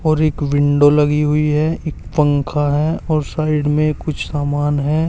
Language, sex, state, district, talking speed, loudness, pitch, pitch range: Hindi, male, Uttar Pradesh, Saharanpur, 165 wpm, -17 LUFS, 150 Hz, 145-155 Hz